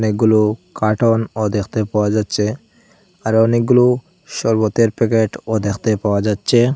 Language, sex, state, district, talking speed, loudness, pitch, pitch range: Bengali, male, Assam, Hailakandi, 115 wpm, -17 LUFS, 110 Hz, 105-120 Hz